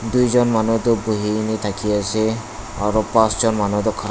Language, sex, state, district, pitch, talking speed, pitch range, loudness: Nagamese, male, Nagaland, Dimapur, 110 Hz, 205 wpm, 105-115 Hz, -19 LUFS